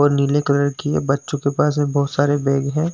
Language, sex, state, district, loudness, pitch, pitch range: Hindi, male, Uttar Pradesh, Jyotiba Phule Nagar, -19 LUFS, 145 Hz, 140-145 Hz